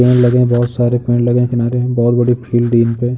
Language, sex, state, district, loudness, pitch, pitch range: Hindi, male, Uttar Pradesh, Jalaun, -13 LUFS, 120 Hz, 120-125 Hz